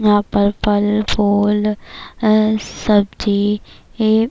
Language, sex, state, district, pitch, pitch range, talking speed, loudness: Urdu, female, Bihar, Kishanganj, 210 Hz, 205-215 Hz, 70 wpm, -16 LUFS